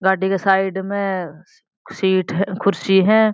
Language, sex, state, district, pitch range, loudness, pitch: Marwari, female, Rajasthan, Churu, 190-195 Hz, -18 LUFS, 190 Hz